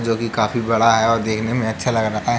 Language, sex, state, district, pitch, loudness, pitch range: Hindi, male, Uttar Pradesh, Jalaun, 115 Hz, -18 LUFS, 110-115 Hz